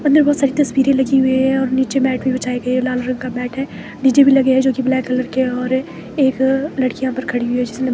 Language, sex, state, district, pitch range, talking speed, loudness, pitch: Hindi, female, Himachal Pradesh, Shimla, 255-270 Hz, 280 wpm, -17 LUFS, 260 Hz